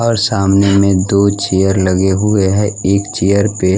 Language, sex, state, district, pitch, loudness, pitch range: Hindi, male, Bihar, West Champaran, 100 Hz, -13 LUFS, 95-100 Hz